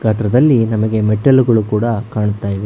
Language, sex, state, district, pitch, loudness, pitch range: Kannada, male, Karnataka, Bangalore, 110 Hz, -14 LUFS, 105-115 Hz